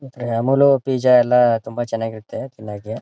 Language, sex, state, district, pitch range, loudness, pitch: Kannada, male, Karnataka, Mysore, 115-130 Hz, -17 LUFS, 120 Hz